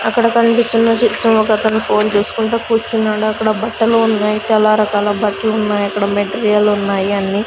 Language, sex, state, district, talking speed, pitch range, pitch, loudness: Telugu, female, Andhra Pradesh, Sri Satya Sai, 160 wpm, 210-225 Hz, 215 Hz, -14 LUFS